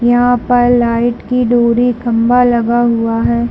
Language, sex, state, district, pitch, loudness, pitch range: Hindi, female, Chhattisgarh, Bilaspur, 240 Hz, -12 LUFS, 235-245 Hz